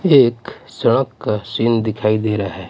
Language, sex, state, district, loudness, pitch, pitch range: Hindi, male, Punjab, Pathankot, -17 LUFS, 110 Hz, 105-115 Hz